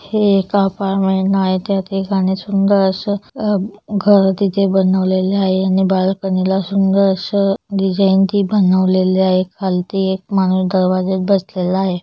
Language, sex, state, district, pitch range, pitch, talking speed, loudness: Marathi, female, Maharashtra, Chandrapur, 190-200 Hz, 190 Hz, 140 wpm, -15 LUFS